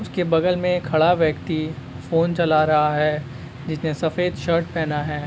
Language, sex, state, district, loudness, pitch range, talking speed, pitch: Hindi, male, Uttar Pradesh, Ghazipur, -21 LUFS, 150-170 Hz, 160 wpm, 155 Hz